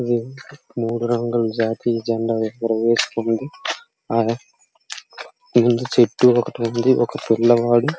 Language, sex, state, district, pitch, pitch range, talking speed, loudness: Telugu, male, Andhra Pradesh, Srikakulam, 120 Hz, 115-120 Hz, 105 wpm, -19 LUFS